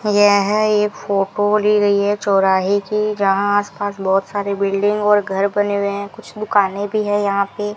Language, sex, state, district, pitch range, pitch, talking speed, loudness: Hindi, female, Rajasthan, Bikaner, 200-210 Hz, 205 Hz, 185 wpm, -17 LUFS